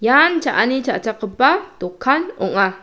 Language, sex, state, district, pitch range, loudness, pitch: Garo, female, Meghalaya, South Garo Hills, 220-295 Hz, -17 LUFS, 260 Hz